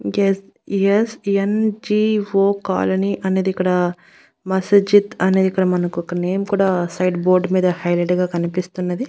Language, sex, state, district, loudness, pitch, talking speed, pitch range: Telugu, female, Andhra Pradesh, Annamaya, -18 LUFS, 190 Hz, 145 wpm, 180-200 Hz